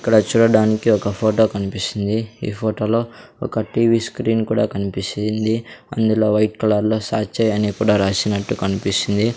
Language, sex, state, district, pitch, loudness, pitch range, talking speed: Telugu, male, Andhra Pradesh, Sri Satya Sai, 110 Hz, -19 LUFS, 105-110 Hz, 140 wpm